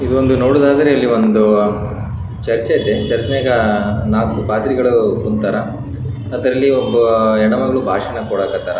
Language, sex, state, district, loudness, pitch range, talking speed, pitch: Kannada, male, Karnataka, Raichur, -15 LUFS, 105-130 Hz, 75 wpm, 115 Hz